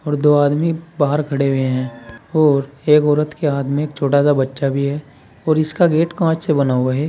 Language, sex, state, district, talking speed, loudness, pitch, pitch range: Hindi, male, Uttar Pradesh, Saharanpur, 220 wpm, -17 LUFS, 145 Hz, 140-155 Hz